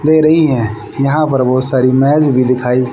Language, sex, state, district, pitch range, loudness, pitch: Hindi, male, Haryana, Rohtak, 125-150 Hz, -12 LUFS, 130 Hz